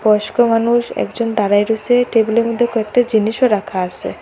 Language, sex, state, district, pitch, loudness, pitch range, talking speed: Bengali, female, Assam, Hailakandi, 225 Hz, -16 LUFS, 210-240 Hz, 155 wpm